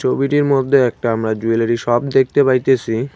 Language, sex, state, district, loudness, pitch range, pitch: Bengali, male, West Bengal, Cooch Behar, -16 LUFS, 115-135 Hz, 130 Hz